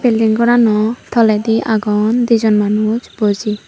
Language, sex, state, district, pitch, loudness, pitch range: Chakma, female, Tripura, Dhalai, 220 Hz, -14 LUFS, 210-230 Hz